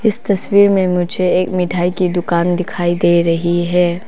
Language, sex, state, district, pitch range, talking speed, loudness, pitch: Hindi, female, Arunachal Pradesh, Papum Pare, 175-185 Hz, 175 wpm, -15 LUFS, 180 Hz